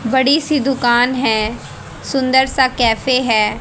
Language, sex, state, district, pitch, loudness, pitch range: Hindi, female, Haryana, Charkhi Dadri, 255 Hz, -15 LUFS, 230-265 Hz